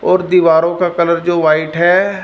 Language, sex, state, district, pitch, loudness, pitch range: Hindi, male, Punjab, Fazilka, 175 Hz, -12 LUFS, 165-180 Hz